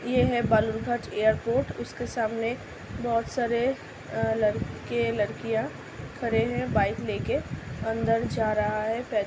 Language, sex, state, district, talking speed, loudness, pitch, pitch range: Hindi, female, Uttar Pradesh, Ghazipur, 135 wpm, -28 LUFS, 230 Hz, 220-240 Hz